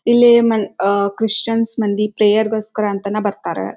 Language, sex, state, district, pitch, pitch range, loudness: Kannada, female, Karnataka, Dharwad, 215 Hz, 205-225 Hz, -16 LUFS